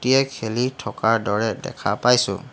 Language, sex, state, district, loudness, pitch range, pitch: Assamese, male, Assam, Hailakandi, -21 LUFS, 105-125 Hz, 115 Hz